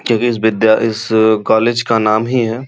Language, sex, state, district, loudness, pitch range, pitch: Hindi, male, Uttar Pradesh, Gorakhpur, -13 LUFS, 110-120 Hz, 115 Hz